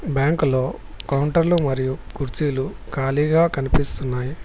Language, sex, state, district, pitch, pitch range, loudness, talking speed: Telugu, male, Telangana, Hyderabad, 140 Hz, 130-150 Hz, -21 LUFS, 80 wpm